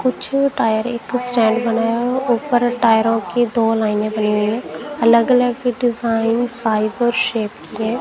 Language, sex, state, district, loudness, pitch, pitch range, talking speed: Hindi, female, Punjab, Kapurthala, -17 LUFS, 235 Hz, 225-245 Hz, 165 wpm